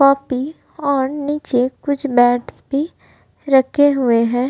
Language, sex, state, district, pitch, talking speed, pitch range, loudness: Hindi, female, Uttar Pradesh, Budaun, 275 Hz, 120 wpm, 250-285 Hz, -17 LUFS